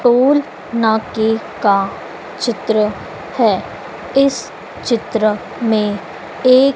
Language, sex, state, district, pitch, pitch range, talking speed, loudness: Hindi, female, Madhya Pradesh, Dhar, 225 Hz, 215-255 Hz, 80 wpm, -17 LUFS